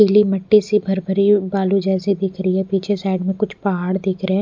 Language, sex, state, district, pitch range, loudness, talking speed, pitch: Hindi, female, Odisha, Malkangiri, 190-200 Hz, -18 LUFS, 215 wpm, 195 Hz